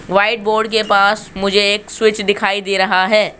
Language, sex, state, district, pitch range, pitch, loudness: Hindi, male, Rajasthan, Jaipur, 200-215 Hz, 205 Hz, -14 LUFS